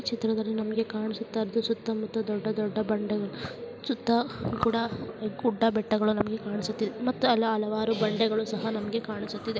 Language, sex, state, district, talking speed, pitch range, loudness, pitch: Kannada, female, Karnataka, Chamarajanagar, 120 wpm, 215-230 Hz, -29 LUFS, 220 Hz